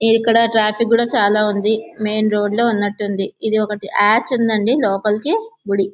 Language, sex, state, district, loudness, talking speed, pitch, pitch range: Telugu, male, Andhra Pradesh, Visakhapatnam, -16 LUFS, 160 wpm, 215 Hz, 205-230 Hz